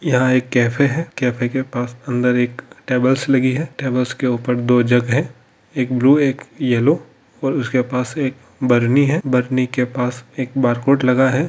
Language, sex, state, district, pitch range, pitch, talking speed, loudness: Hindi, male, Andhra Pradesh, Chittoor, 125-135 Hz, 130 Hz, 190 wpm, -18 LUFS